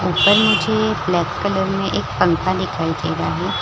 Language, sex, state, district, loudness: Hindi, female, Bihar, Madhepura, -18 LUFS